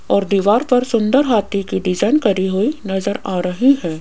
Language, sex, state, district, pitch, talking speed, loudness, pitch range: Hindi, female, Rajasthan, Jaipur, 200 Hz, 195 wpm, -16 LUFS, 190-245 Hz